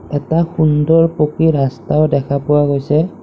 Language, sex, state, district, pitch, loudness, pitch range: Assamese, male, Assam, Kamrup Metropolitan, 150 Hz, -14 LUFS, 145-160 Hz